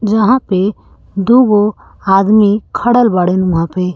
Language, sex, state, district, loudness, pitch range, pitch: Bhojpuri, female, Uttar Pradesh, Gorakhpur, -12 LUFS, 185-220 Hz, 205 Hz